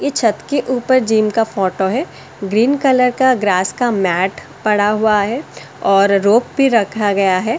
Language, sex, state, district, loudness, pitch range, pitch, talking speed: Hindi, female, Delhi, New Delhi, -15 LUFS, 200-250 Hz, 220 Hz, 190 wpm